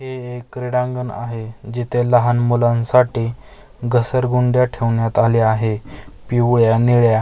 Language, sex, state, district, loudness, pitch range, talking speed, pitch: Marathi, male, Maharashtra, Mumbai Suburban, -17 LUFS, 115-125 Hz, 115 wpm, 120 Hz